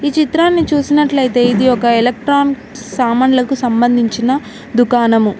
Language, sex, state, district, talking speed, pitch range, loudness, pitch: Telugu, female, Telangana, Mahabubabad, 90 wpm, 235-280 Hz, -13 LUFS, 250 Hz